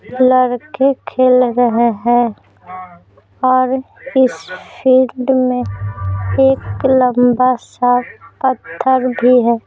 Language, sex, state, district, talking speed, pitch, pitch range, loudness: Hindi, female, Bihar, Patna, 85 wpm, 245 Hz, 225-255 Hz, -14 LUFS